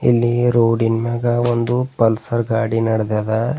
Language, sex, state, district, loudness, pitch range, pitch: Kannada, male, Karnataka, Bidar, -18 LUFS, 115-120 Hz, 115 Hz